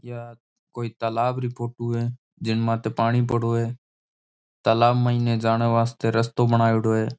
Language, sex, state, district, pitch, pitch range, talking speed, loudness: Marwari, male, Rajasthan, Nagaur, 115 Hz, 115-120 Hz, 140 wpm, -23 LUFS